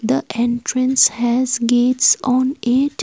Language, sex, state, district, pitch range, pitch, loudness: English, female, Assam, Kamrup Metropolitan, 240-260 Hz, 250 Hz, -16 LUFS